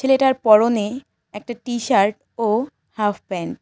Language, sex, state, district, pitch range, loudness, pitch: Bengali, female, West Bengal, Cooch Behar, 215-260 Hz, -19 LUFS, 230 Hz